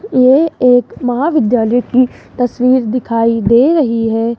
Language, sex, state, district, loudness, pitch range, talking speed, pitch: Hindi, female, Rajasthan, Jaipur, -12 LUFS, 230-260 Hz, 125 wpm, 245 Hz